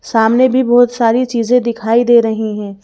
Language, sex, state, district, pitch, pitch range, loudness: Hindi, female, Madhya Pradesh, Bhopal, 235 Hz, 220-245 Hz, -12 LUFS